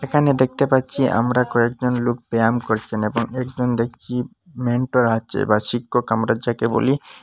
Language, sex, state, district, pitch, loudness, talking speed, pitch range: Bengali, male, Assam, Hailakandi, 120 Hz, -20 LUFS, 150 wpm, 115-130 Hz